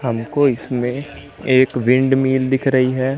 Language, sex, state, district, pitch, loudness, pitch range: Hindi, male, Madhya Pradesh, Katni, 130 Hz, -17 LUFS, 125-135 Hz